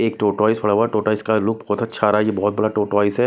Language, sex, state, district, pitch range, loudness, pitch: Hindi, male, Chhattisgarh, Raipur, 105-110 Hz, -19 LUFS, 105 Hz